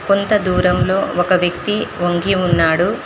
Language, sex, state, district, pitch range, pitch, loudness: Telugu, female, Telangana, Mahabubabad, 175-200 Hz, 180 Hz, -16 LUFS